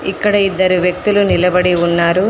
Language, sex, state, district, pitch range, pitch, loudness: Telugu, female, Telangana, Mahabubabad, 180-200 Hz, 185 Hz, -13 LUFS